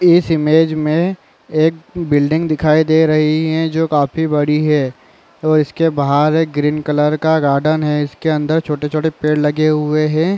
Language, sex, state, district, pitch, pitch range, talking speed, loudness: Hindi, male, Chhattisgarh, Raigarh, 155 Hz, 150-160 Hz, 180 wpm, -15 LUFS